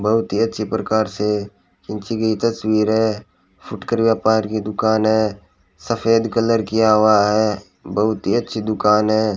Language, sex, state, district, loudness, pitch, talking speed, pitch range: Hindi, male, Rajasthan, Bikaner, -18 LUFS, 110 Hz, 155 wpm, 105-110 Hz